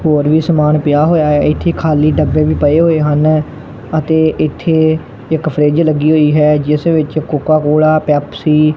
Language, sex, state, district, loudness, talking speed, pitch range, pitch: Punjabi, male, Punjab, Kapurthala, -12 LUFS, 180 wpm, 150-160 Hz, 155 Hz